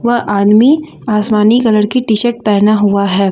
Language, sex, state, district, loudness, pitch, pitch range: Hindi, female, Jharkhand, Deoghar, -11 LUFS, 215 Hz, 205-235 Hz